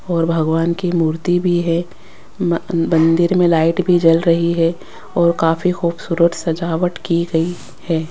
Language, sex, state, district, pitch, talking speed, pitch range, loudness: Hindi, female, Rajasthan, Jaipur, 170 Hz, 150 wpm, 165-175 Hz, -17 LUFS